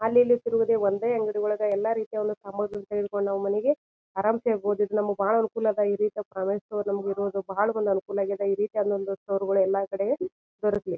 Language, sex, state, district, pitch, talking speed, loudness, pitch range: Kannada, female, Karnataka, Bijapur, 205 Hz, 165 wpm, -26 LUFS, 200-215 Hz